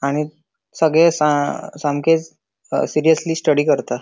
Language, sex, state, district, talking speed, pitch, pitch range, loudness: Konkani, male, Goa, North and South Goa, 90 wpm, 155 Hz, 150-160 Hz, -18 LUFS